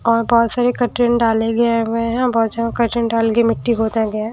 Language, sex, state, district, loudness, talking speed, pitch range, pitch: Hindi, female, Haryana, Jhajjar, -17 LUFS, 220 wpm, 225-235 Hz, 230 Hz